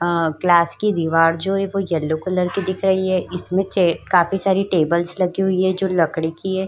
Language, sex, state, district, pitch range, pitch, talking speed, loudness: Hindi, female, Uttar Pradesh, Varanasi, 170-190 Hz, 185 Hz, 215 wpm, -19 LUFS